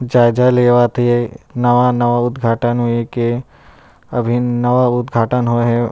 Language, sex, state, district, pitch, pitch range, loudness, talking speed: Chhattisgarhi, male, Chhattisgarh, Rajnandgaon, 120 Hz, 120-125 Hz, -15 LUFS, 120 wpm